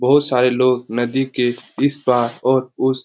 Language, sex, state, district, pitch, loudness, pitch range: Hindi, male, Bihar, Lakhisarai, 130 Hz, -18 LUFS, 125-130 Hz